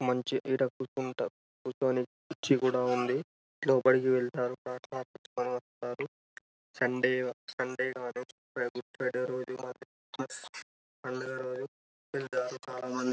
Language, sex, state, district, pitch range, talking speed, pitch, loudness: Telugu, male, Telangana, Karimnagar, 125-130 Hz, 95 wpm, 125 Hz, -33 LUFS